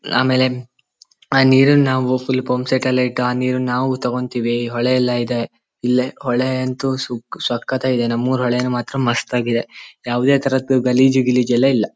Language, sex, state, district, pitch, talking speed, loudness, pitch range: Kannada, male, Karnataka, Shimoga, 125 Hz, 165 wpm, -18 LUFS, 120-130 Hz